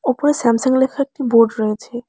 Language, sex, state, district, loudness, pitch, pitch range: Bengali, female, West Bengal, Alipurduar, -16 LUFS, 250 Hz, 230-270 Hz